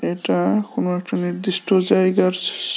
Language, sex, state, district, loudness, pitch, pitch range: Bengali, male, Tripura, West Tripura, -19 LUFS, 185 Hz, 180-190 Hz